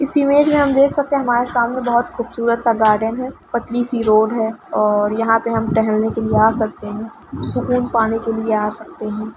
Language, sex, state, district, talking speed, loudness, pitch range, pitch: Hindi, female, Bihar, Lakhisarai, 230 wpm, -17 LUFS, 220-245 Hz, 225 Hz